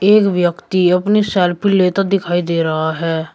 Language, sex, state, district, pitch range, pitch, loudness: Hindi, male, Uttar Pradesh, Shamli, 170-195 Hz, 180 Hz, -15 LUFS